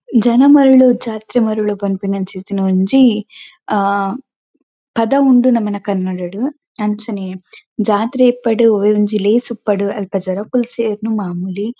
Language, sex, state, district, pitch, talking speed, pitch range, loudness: Tulu, female, Karnataka, Dakshina Kannada, 210 Hz, 110 wpm, 200-240 Hz, -15 LUFS